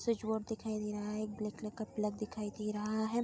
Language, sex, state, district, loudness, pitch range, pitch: Hindi, female, Bihar, Vaishali, -39 LUFS, 210-220 Hz, 215 Hz